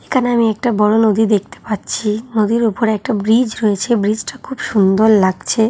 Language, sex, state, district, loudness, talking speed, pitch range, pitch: Bengali, female, West Bengal, Kolkata, -15 LUFS, 180 wpm, 210-230 Hz, 220 Hz